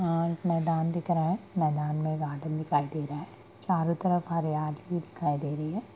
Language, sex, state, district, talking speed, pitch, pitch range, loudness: Hindi, female, Bihar, Darbhanga, 210 wpm, 160 Hz, 150-170 Hz, -30 LUFS